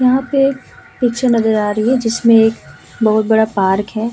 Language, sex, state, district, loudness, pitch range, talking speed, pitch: Hindi, female, Uttar Pradesh, Hamirpur, -14 LUFS, 220-250 Hz, 205 wpm, 225 Hz